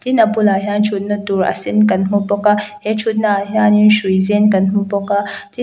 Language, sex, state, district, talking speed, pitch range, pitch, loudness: Mizo, female, Mizoram, Aizawl, 245 wpm, 200-215 Hz, 205 Hz, -15 LUFS